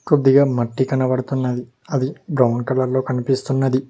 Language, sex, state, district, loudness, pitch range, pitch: Telugu, male, Telangana, Mahabubabad, -19 LUFS, 130-135 Hz, 130 Hz